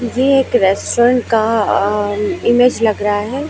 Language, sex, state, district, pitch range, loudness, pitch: Hindi, female, Uttar Pradesh, Lucknow, 210-250 Hz, -14 LUFS, 225 Hz